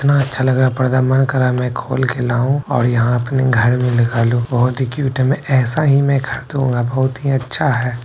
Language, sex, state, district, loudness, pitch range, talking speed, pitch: Maithili, male, Bihar, Kishanganj, -16 LUFS, 125-135 Hz, 285 wpm, 130 Hz